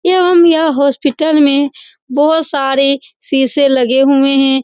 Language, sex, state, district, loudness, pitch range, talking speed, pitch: Hindi, female, Uttar Pradesh, Muzaffarnagar, -11 LUFS, 275-315 Hz, 140 wpm, 280 Hz